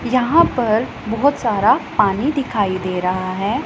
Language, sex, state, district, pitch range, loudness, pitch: Hindi, female, Punjab, Pathankot, 190-255 Hz, -18 LUFS, 225 Hz